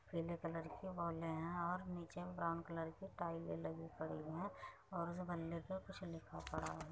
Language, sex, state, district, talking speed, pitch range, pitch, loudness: Hindi, female, Uttar Pradesh, Muzaffarnagar, 180 wpm, 165-180 Hz, 170 Hz, -47 LUFS